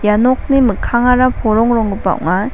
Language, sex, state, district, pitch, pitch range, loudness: Garo, female, Meghalaya, South Garo Hills, 230 Hz, 210-250 Hz, -14 LUFS